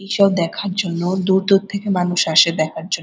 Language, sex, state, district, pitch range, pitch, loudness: Bengali, female, West Bengal, Purulia, 170-195 Hz, 180 Hz, -17 LUFS